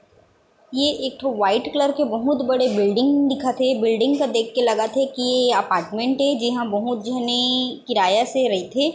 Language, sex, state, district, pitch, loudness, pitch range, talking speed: Chhattisgarhi, female, Chhattisgarh, Bilaspur, 250 Hz, -20 LUFS, 230-270 Hz, 175 wpm